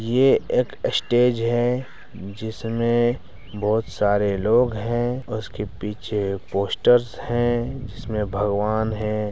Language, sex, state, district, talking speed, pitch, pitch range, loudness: Hindi, male, Bihar, Araria, 110 wpm, 110 Hz, 105-120 Hz, -22 LUFS